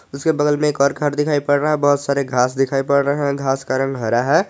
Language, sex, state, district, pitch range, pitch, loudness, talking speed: Hindi, male, Jharkhand, Garhwa, 135-145 Hz, 140 Hz, -18 LUFS, 295 wpm